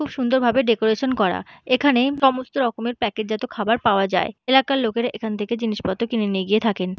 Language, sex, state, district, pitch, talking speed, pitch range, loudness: Bengali, female, West Bengal, Purulia, 235 Hz, 195 wpm, 215-255 Hz, -21 LUFS